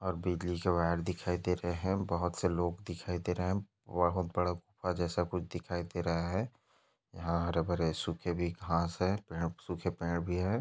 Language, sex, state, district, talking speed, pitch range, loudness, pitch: Hindi, male, Maharashtra, Aurangabad, 205 wpm, 85-90 Hz, -35 LUFS, 90 Hz